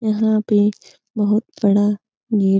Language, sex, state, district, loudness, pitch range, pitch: Hindi, female, Bihar, Supaul, -18 LUFS, 205-215 Hz, 210 Hz